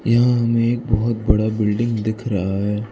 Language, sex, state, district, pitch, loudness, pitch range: Hindi, male, Arunachal Pradesh, Lower Dibang Valley, 110 Hz, -19 LUFS, 105-115 Hz